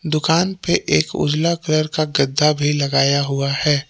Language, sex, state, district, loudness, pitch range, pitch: Hindi, male, Jharkhand, Palamu, -18 LUFS, 140-155 Hz, 150 Hz